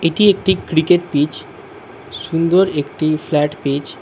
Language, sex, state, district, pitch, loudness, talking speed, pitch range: Bengali, male, West Bengal, Alipurduar, 170 Hz, -16 LUFS, 135 wpm, 150-205 Hz